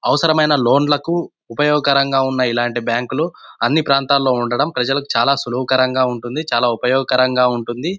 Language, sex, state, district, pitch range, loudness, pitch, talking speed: Telugu, male, Andhra Pradesh, Anantapur, 120-145 Hz, -17 LUFS, 130 Hz, 135 wpm